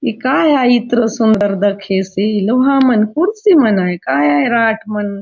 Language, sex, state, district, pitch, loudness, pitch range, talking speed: Halbi, female, Chhattisgarh, Bastar, 220 Hz, -13 LUFS, 200-250 Hz, 185 wpm